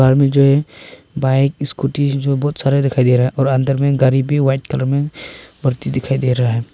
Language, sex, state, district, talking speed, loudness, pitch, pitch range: Hindi, male, Arunachal Pradesh, Longding, 195 wpm, -16 LUFS, 135 Hz, 130-140 Hz